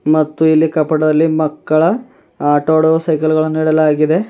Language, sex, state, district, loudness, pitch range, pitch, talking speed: Kannada, male, Karnataka, Bidar, -14 LUFS, 155-160 Hz, 155 Hz, 95 wpm